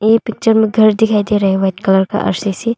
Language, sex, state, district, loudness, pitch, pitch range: Hindi, female, Arunachal Pradesh, Longding, -13 LUFS, 215 Hz, 195-220 Hz